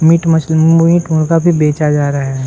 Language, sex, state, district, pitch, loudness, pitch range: Hindi, male, Bihar, Saran, 160 Hz, -11 LUFS, 150-165 Hz